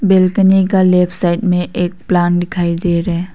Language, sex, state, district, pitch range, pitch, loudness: Hindi, female, Arunachal Pradesh, Papum Pare, 175-185 Hz, 180 Hz, -14 LUFS